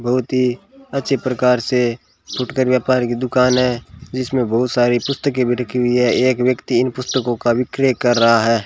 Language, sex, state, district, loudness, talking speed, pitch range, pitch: Hindi, male, Rajasthan, Bikaner, -17 LUFS, 185 wpm, 120-130 Hz, 125 Hz